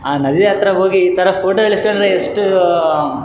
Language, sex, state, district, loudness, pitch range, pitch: Kannada, male, Karnataka, Raichur, -13 LUFS, 160-200 Hz, 190 Hz